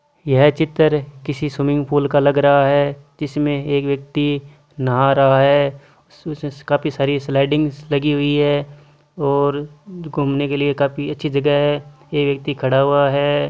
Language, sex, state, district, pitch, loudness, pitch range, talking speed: Marwari, male, Rajasthan, Nagaur, 145 Hz, -18 LUFS, 140-150 Hz, 115 wpm